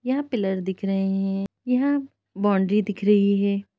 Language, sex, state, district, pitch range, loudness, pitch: Hindi, female, Uttar Pradesh, Jalaun, 195-250 Hz, -23 LUFS, 200 Hz